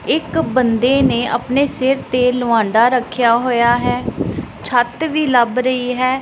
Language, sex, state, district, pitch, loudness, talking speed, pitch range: Punjabi, female, Punjab, Pathankot, 250 Hz, -16 LUFS, 145 wpm, 240-260 Hz